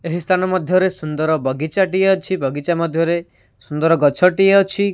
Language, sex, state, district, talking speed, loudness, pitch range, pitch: Odia, male, Odisha, Khordha, 160 wpm, -16 LUFS, 160-190 Hz, 175 Hz